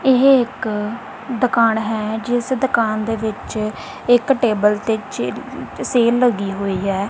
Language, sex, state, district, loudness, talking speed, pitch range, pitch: Punjabi, female, Punjab, Kapurthala, -18 LUFS, 135 wpm, 215-245 Hz, 225 Hz